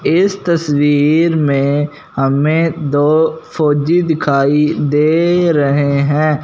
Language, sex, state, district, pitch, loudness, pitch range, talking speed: Hindi, male, Punjab, Fazilka, 150 Hz, -13 LUFS, 145-160 Hz, 95 wpm